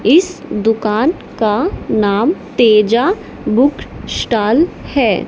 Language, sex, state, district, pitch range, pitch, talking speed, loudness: Hindi, female, Haryana, Charkhi Dadri, 215-320 Hz, 235 Hz, 90 wpm, -14 LUFS